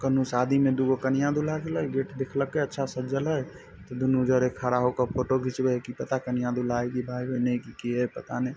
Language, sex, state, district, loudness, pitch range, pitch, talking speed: Maithili, male, Bihar, Samastipur, -27 LUFS, 125-135 Hz, 130 Hz, 240 wpm